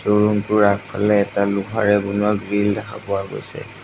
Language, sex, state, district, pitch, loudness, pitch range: Assamese, male, Assam, Sonitpur, 105 Hz, -19 LUFS, 100-105 Hz